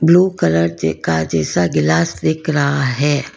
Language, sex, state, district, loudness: Hindi, female, Karnataka, Bangalore, -16 LUFS